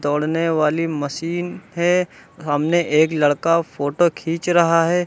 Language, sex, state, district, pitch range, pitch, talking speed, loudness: Hindi, male, Uttar Pradesh, Lucknow, 150-170 Hz, 165 Hz, 120 wpm, -19 LUFS